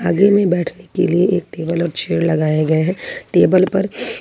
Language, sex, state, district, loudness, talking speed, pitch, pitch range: Hindi, female, Jharkhand, Ranchi, -16 LUFS, 185 wpm, 175 Hz, 165-190 Hz